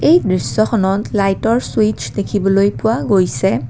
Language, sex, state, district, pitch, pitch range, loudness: Assamese, female, Assam, Kamrup Metropolitan, 195 Hz, 190-215 Hz, -16 LUFS